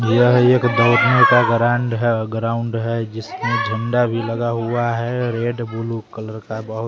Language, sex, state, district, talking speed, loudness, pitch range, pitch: Hindi, male, Bihar, West Champaran, 165 wpm, -18 LUFS, 115-120 Hz, 115 Hz